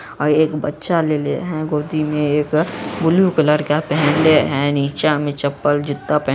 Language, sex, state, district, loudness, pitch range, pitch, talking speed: Hindi, female, Bihar, Araria, -17 LUFS, 145-155 Hz, 150 Hz, 170 wpm